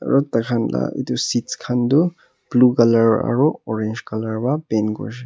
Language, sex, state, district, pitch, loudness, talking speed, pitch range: Nagamese, male, Nagaland, Kohima, 120 Hz, -19 LUFS, 170 wpm, 110-135 Hz